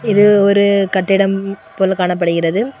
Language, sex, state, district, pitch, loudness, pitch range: Tamil, female, Tamil Nadu, Kanyakumari, 195 Hz, -14 LUFS, 190-200 Hz